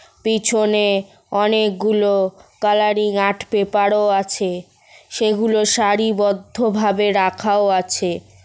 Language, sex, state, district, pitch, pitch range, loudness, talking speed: Bengali, male, West Bengal, Kolkata, 205 Hz, 195-215 Hz, -18 LUFS, 80 wpm